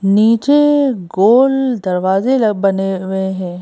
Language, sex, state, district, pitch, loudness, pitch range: Hindi, female, Madhya Pradesh, Bhopal, 200 Hz, -14 LUFS, 190-260 Hz